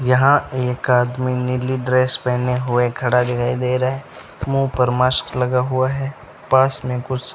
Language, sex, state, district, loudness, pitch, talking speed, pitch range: Hindi, male, Rajasthan, Bikaner, -19 LUFS, 125 Hz, 180 wpm, 125-130 Hz